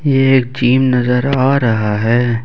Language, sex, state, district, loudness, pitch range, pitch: Hindi, male, Jharkhand, Ranchi, -13 LUFS, 120-135 Hz, 125 Hz